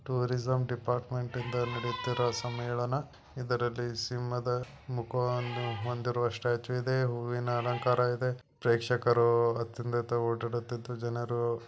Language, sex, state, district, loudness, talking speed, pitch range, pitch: Kannada, male, Karnataka, Belgaum, -32 LUFS, 50 wpm, 120-125 Hz, 120 Hz